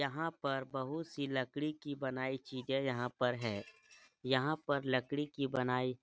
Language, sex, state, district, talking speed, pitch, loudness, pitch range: Hindi, male, Uttar Pradesh, Etah, 170 wpm, 135 Hz, -38 LUFS, 130-145 Hz